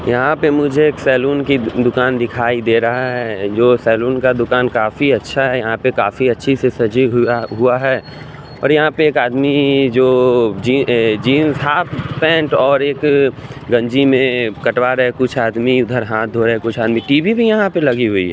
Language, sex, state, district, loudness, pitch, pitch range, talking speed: Hindi, male, Chandigarh, Chandigarh, -14 LUFS, 130 Hz, 120-140 Hz, 195 wpm